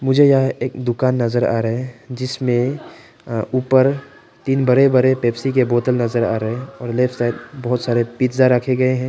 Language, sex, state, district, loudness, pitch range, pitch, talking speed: Hindi, male, Arunachal Pradesh, Papum Pare, -18 LUFS, 120-130 Hz, 125 Hz, 190 wpm